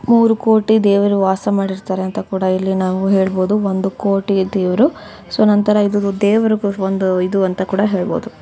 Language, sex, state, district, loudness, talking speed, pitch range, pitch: Kannada, female, Karnataka, Dakshina Kannada, -16 LUFS, 165 wpm, 190-210 Hz, 195 Hz